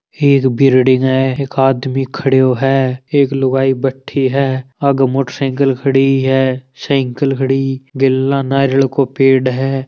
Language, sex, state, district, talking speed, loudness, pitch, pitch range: Marwari, male, Rajasthan, Churu, 135 wpm, -14 LUFS, 135 Hz, 130-135 Hz